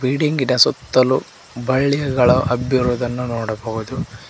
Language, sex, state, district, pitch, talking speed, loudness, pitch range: Kannada, male, Karnataka, Koppal, 130 Hz, 70 wpm, -18 LUFS, 125-135 Hz